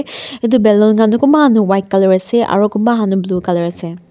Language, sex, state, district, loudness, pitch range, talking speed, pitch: Nagamese, female, Nagaland, Dimapur, -13 LUFS, 190-235 Hz, 250 wpm, 210 Hz